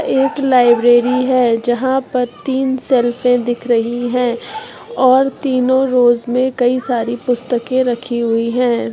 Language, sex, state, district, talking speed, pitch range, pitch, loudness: Hindi, female, Uttar Pradesh, Jyotiba Phule Nagar, 125 wpm, 240-260 Hz, 245 Hz, -15 LUFS